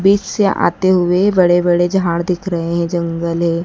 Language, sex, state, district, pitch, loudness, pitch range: Hindi, female, Madhya Pradesh, Dhar, 175 Hz, -15 LUFS, 170-185 Hz